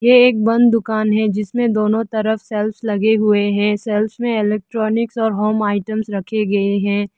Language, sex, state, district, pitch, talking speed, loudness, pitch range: Hindi, female, Arunachal Pradesh, Lower Dibang Valley, 215 Hz, 175 wpm, -17 LUFS, 210-225 Hz